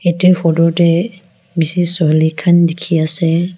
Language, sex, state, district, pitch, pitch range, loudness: Nagamese, female, Nagaland, Kohima, 170 Hz, 165-175 Hz, -13 LUFS